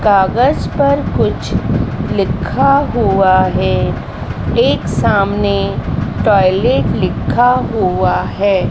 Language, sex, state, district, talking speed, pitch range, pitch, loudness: Hindi, female, Madhya Pradesh, Dhar, 85 wpm, 185-220 Hz, 195 Hz, -14 LUFS